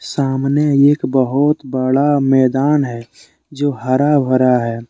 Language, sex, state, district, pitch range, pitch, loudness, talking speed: Hindi, male, Jharkhand, Deoghar, 130-145 Hz, 135 Hz, -15 LUFS, 120 wpm